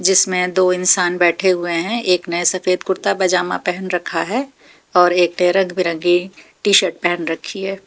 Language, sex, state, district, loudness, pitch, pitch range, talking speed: Hindi, female, Haryana, Jhajjar, -17 LUFS, 180 Hz, 175-190 Hz, 185 wpm